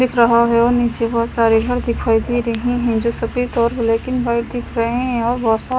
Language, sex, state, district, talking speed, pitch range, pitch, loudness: Hindi, female, Himachal Pradesh, Shimla, 260 wpm, 230-245 Hz, 235 Hz, -17 LUFS